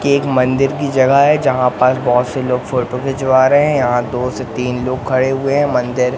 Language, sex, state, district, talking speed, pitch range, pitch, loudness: Hindi, male, Madhya Pradesh, Katni, 235 wpm, 125-135 Hz, 130 Hz, -15 LUFS